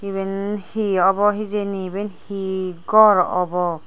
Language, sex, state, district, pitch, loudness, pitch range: Chakma, female, Tripura, Dhalai, 195 Hz, -20 LUFS, 185-205 Hz